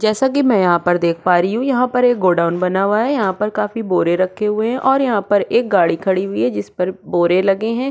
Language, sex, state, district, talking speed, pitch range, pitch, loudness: Hindi, female, Chhattisgarh, Korba, 265 wpm, 180-235 Hz, 200 Hz, -16 LUFS